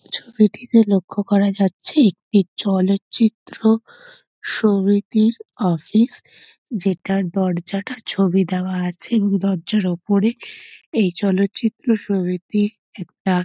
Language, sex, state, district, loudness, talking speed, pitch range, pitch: Bengali, female, West Bengal, Paschim Medinipur, -19 LUFS, 95 wpm, 190-225 Hz, 205 Hz